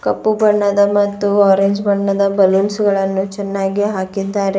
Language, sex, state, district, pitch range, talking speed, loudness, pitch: Kannada, female, Karnataka, Bidar, 195-205 Hz, 115 wpm, -15 LUFS, 200 Hz